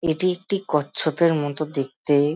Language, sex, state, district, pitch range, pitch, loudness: Bengali, male, West Bengal, Malda, 145-170 Hz, 155 Hz, -23 LUFS